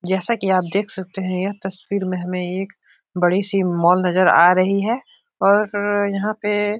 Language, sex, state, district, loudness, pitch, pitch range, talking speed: Hindi, male, Uttar Pradesh, Etah, -19 LUFS, 195 Hz, 185-205 Hz, 195 wpm